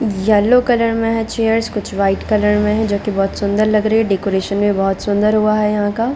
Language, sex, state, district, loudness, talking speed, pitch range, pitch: Hindi, female, Bihar, Darbhanga, -16 LUFS, 245 wpm, 200-225 Hz, 210 Hz